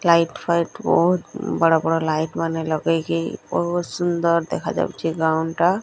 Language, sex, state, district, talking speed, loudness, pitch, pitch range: Odia, male, Odisha, Nuapada, 135 wpm, -21 LUFS, 165 Hz, 160-175 Hz